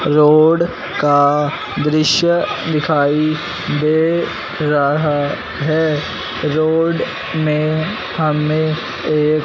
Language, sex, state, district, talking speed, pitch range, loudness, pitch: Hindi, male, Punjab, Fazilka, 70 wpm, 150-160 Hz, -16 LUFS, 155 Hz